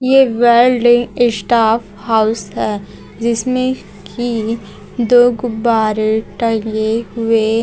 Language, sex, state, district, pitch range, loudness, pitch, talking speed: Hindi, female, Chhattisgarh, Raipur, 220-240 Hz, -15 LUFS, 230 Hz, 85 wpm